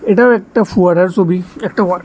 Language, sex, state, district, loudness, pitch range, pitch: Bengali, male, Tripura, West Tripura, -13 LUFS, 180-215 Hz, 195 Hz